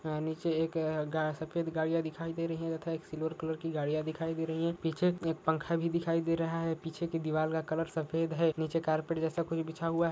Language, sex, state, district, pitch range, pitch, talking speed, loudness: Hindi, male, Jharkhand, Jamtara, 160-165 Hz, 165 Hz, 205 wpm, -34 LUFS